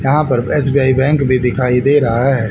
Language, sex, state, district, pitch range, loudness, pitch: Hindi, male, Haryana, Jhajjar, 125-140 Hz, -13 LUFS, 130 Hz